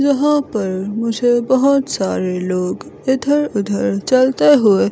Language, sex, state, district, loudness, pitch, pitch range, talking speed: Hindi, female, Himachal Pradesh, Shimla, -16 LUFS, 240 Hz, 190-275 Hz, 120 wpm